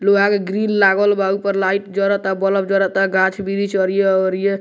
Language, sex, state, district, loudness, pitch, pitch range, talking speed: Bhojpuri, male, Bihar, Muzaffarpur, -17 LUFS, 195 Hz, 190-200 Hz, 170 wpm